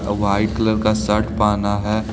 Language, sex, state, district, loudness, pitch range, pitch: Hindi, male, Jharkhand, Deoghar, -19 LUFS, 105-110 Hz, 105 Hz